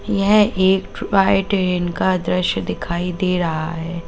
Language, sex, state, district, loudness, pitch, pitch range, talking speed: Hindi, female, Uttar Pradesh, Lalitpur, -18 LUFS, 185 Hz, 175-195 Hz, 145 wpm